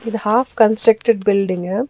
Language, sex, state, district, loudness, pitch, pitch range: Tamil, female, Tamil Nadu, Nilgiris, -16 LUFS, 220 Hz, 205-230 Hz